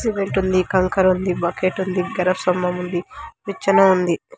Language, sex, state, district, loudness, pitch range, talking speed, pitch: Telugu, female, Andhra Pradesh, Anantapur, -19 LUFS, 180-195 Hz, 135 wpm, 185 Hz